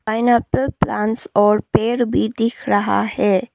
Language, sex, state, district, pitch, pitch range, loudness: Hindi, female, Arunachal Pradesh, Lower Dibang Valley, 225 Hz, 210-235 Hz, -18 LUFS